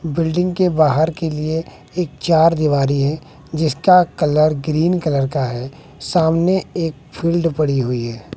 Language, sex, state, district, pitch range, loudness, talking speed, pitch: Hindi, male, Bihar, West Champaran, 140-165 Hz, -17 LUFS, 150 wpm, 155 Hz